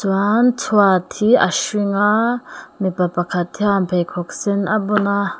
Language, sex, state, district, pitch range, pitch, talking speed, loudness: Mizo, female, Mizoram, Aizawl, 185-215 Hz, 200 Hz, 190 wpm, -17 LUFS